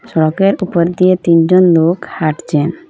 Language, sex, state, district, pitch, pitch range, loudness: Bengali, female, Assam, Hailakandi, 170 Hz, 160-185 Hz, -12 LUFS